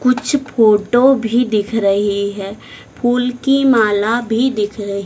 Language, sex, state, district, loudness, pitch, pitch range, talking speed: Hindi, female, Madhya Pradesh, Dhar, -15 LUFS, 225 Hz, 205-250 Hz, 140 wpm